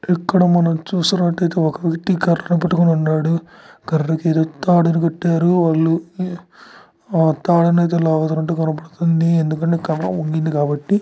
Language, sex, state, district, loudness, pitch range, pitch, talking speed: Telugu, male, Andhra Pradesh, Guntur, -17 LUFS, 160-175 Hz, 165 Hz, 110 wpm